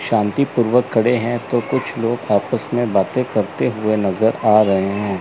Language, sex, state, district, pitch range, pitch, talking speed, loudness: Hindi, male, Chandigarh, Chandigarh, 105-120 Hz, 115 Hz, 175 wpm, -18 LUFS